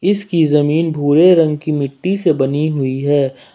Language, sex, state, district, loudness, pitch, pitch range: Hindi, male, Jharkhand, Ranchi, -15 LUFS, 150 Hz, 145-165 Hz